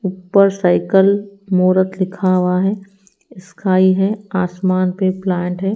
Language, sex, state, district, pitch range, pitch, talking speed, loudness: Hindi, female, Haryana, Rohtak, 185-195 Hz, 190 Hz, 125 wpm, -16 LUFS